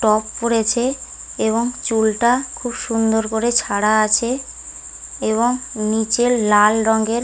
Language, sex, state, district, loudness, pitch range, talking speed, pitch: Bengali, female, West Bengal, Paschim Medinipur, -18 LUFS, 220-240 Hz, 115 wpm, 225 Hz